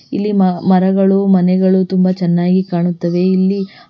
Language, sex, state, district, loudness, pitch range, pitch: Kannada, female, Karnataka, Bangalore, -13 LUFS, 180-195 Hz, 185 Hz